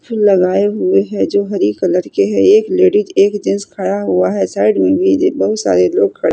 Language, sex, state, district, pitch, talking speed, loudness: Hindi, female, Chhattisgarh, Raipur, 190 Hz, 225 wpm, -13 LUFS